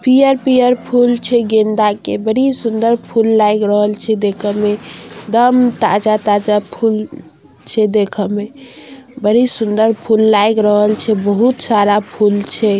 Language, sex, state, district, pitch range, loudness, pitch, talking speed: Maithili, female, Bihar, Darbhanga, 210-235 Hz, -14 LUFS, 215 Hz, 150 wpm